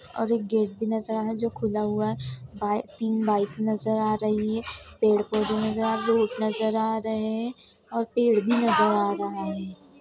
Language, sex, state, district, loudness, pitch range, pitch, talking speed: Hindi, female, Bihar, Saharsa, -26 LUFS, 210-225 Hz, 220 Hz, 205 wpm